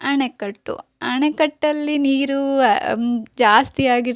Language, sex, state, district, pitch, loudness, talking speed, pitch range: Kannada, female, Karnataka, Shimoga, 270 Hz, -18 LUFS, 115 wpm, 240-290 Hz